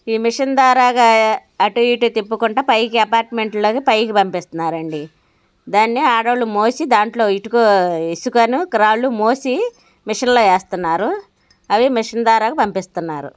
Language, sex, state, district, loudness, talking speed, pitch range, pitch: Telugu, female, Andhra Pradesh, Guntur, -16 LUFS, 115 wpm, 205-240 Hz, 225 Hz